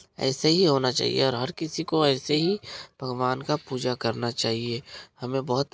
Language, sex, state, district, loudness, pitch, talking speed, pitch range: Hindi, male, Bihar, Araria, -25 LUFS, 135 Hz, 180 wpm, 125-150 Hz